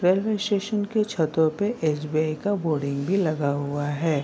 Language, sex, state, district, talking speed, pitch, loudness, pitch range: Hindi, male, Bihar, Kishanganj, 170 wpm, 160 Hz, -25 LUFS, 150-205 Hz